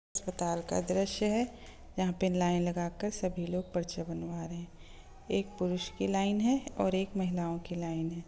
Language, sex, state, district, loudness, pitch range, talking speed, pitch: Hindi, female, Bihar, Gopalganj, -33 LUFS, 170-195 Hz, 190 wpm, 180 Hz